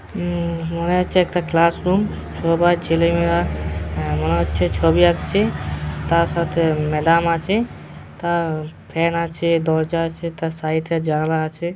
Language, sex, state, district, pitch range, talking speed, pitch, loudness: Bengali, male, West Bengal, Jhargram, 155-170 Hz, 140 wpm, 165 Hz, -20 LUFS